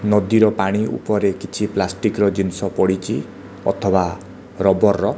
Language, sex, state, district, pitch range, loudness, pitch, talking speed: Odia, male, Odisha, Khordha, 95-105 Hz, -19 LUFS, 100 Hz, 140 wpm